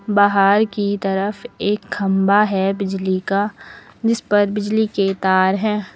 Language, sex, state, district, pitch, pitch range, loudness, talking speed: Hindi, female, Uttar Pradesh, Lucknow, 200 Hz, 195-210 Hz, -18 LUFS, 130 wpm